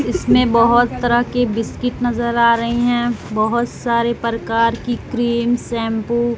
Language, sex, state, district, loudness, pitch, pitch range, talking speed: Hindi, female, Bihar, West Champaran, -17 LUFS, 235 Hz, 230-240 Hz, 150 wpm